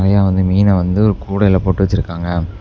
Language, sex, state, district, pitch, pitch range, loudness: Tamil, male, Tamil Nadu, Namakkal, 95 Hz, 90-100 Hz, -15 LUFS